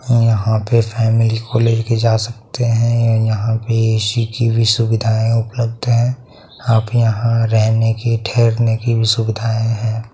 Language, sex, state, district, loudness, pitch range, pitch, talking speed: Hindi, male, Bihar, Saharsa, -16 LUFS, 110-115 Hz, 115 Hz, 160 wpm